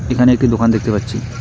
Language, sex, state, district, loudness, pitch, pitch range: Bengali, male, West Bengal, Alipurduar, -15 LUFS, 115 Hz, 115-125 Hz